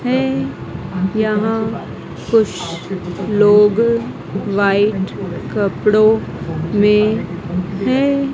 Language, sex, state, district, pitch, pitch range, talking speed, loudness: Hindi, female, Madhya Pradesh, Dhar, 210 Hz, 185-220 Hz, 60 wpm, -17 LUFS